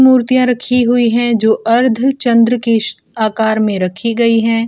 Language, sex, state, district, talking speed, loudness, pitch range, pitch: Hindi, female, Bihar, Gopalganj, 165 wpm, -13 LUFS, 225-245 Hz, 230 Hz